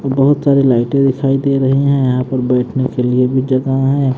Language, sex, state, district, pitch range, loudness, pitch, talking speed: Hindi, male, Haryana, Jhajjar, 130-135 Hz, -14 LUFS, 135 Hz, 215 wpm